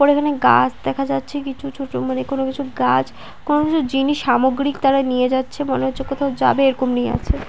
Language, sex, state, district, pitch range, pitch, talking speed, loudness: Bengali, female, West Bengal, Paschim Medinipur, 255-280 Hz, 265 Hz, 210 wpm, -19 LUFS